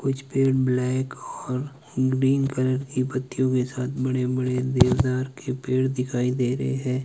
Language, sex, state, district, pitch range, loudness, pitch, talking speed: Hindi, male, Himachal Pradesh, Shimla, 125-130 Hz, -24 LUFS, 130 Hz, 160 wpm